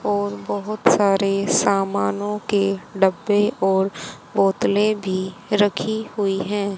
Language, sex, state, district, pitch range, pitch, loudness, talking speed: Hindi, female, Haryana, Jhajjar, 190-205 Hz, 195 Hz, -20 LUFS, 105 wpm